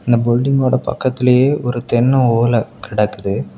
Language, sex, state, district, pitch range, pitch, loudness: Tamil, male, Tamil Nadu, Kanyakumari, 110-130 Hz, 120 Hz, -15 LUFS